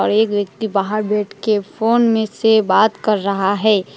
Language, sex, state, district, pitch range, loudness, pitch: Hindi, female, West Bengal, Alipurduar, 200-220 Hz, -17 LUFS, 210 Hz